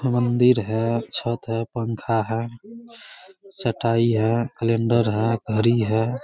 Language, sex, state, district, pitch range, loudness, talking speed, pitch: Hindi, male, Bihar, Araria, 115-120 Hz, -22 LUFS, 115 wpm, 115 Hz